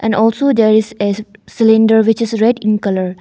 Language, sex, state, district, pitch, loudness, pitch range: English, female, Arunachal Pradesh, Longding, 220 Hz, -13 LUFS, 215-225 Hz